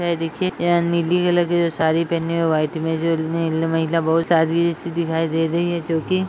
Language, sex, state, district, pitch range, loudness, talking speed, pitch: Hindi, female, Bihar, Vaishali, 165-170 Hz, -20 LUFS, 230 wpm, 165 Hz